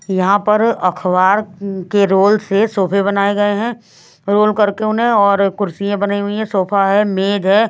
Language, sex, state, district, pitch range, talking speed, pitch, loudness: Hindi, female, Maharashtra, Washim, 195-210 Hz, 170 wpm, 200 Hz, -15 LUFS